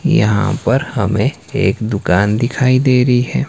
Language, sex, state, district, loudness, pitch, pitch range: Hindi, male, Himachal Pradesh, Shimla, -15 LUFS, 125 Hz, 105-130 Hz